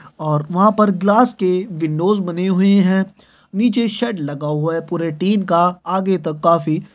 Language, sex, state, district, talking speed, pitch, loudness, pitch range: Hindi, male, Chhattisgarh, Bilaspur, 175 wpm, 185 Hz, -17 LUFS, 165-200 Hz